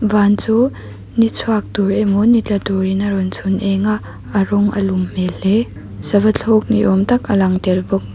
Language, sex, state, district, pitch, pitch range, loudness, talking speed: Mizo, female, Mizoram, Aizawl, 200 Hz, 190-215 Hz, -16 LUFS, 200 wpm